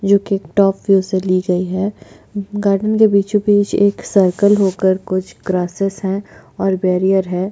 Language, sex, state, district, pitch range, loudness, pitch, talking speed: Hindi, female, Chhattisgarh, Jashpur, 185-200 Hz, -16 LUFS, 195 Hz, 170 wpm